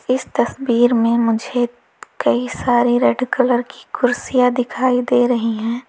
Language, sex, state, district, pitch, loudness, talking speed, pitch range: Hindi, female, Uttar Pradesh, Lalitpur, 245 Hz, -17 LUFS, 140 wpm, 240-250 Hz